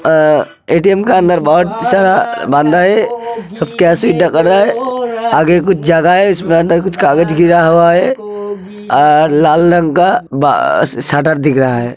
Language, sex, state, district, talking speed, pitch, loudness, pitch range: Hindi, male, Uttar Pradesh, Hamirpur, 140 wpm, 175 Hz, -10 LUFS, 160-195 Hz